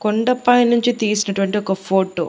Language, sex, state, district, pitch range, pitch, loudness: Telugu, female, Andhra Pradesh, Annamaya, 195-240 Hz, 210 Hz, -17 LUFS